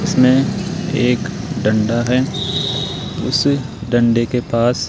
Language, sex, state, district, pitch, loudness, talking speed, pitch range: Hindi, male, Rajasthan, Jaipur, 125 Hz, -17 LUFS, 100 wpm, 120-135 Hz